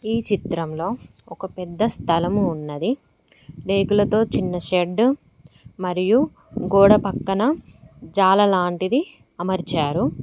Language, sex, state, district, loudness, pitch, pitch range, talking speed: Telugu, female, Telangana, Mahabubabad, -21 LUFS, 190 Hz, 175-215 Hz, 90 wpm